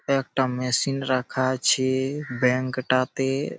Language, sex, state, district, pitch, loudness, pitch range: Bengali, male, West Bengal, Malda, 130 Hz, -24 LUFS, 130-135 Hz